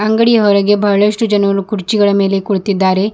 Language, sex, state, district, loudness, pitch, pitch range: Kannada, female, Karnataka, Bidar, -12 LUFS, 205 Hz, 195-210 Hz